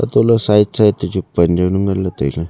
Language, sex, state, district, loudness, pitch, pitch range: Wancho, male, Arunachal Pradesh, Longding, -15 LUFS, 95 Hz, 85-105 Hz